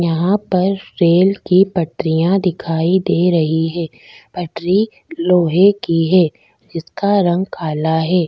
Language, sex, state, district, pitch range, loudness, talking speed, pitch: Hindi, female, Chhattisgarh, Bastar, 165-190 Hz, -16 LUFS, 125 wpm, 175 Hz